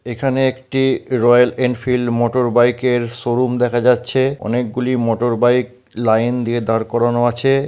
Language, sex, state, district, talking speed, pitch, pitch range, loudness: Bengali, male, West Bengal, Purulia, 140 wpm, 125 Hz, 120-125 Hz, -16 LUFS